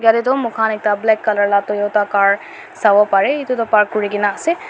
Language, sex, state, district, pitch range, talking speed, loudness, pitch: Nagamese, female, Nagaland, Dimapur, 205-230 Hz, 205 wpm, -16 LUFS, 210 Hz